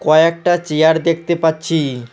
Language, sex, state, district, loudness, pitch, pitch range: Bengali, male, West Bengal, Alipurduar, -15 LUFS, 160 Hz, 155-170 Hz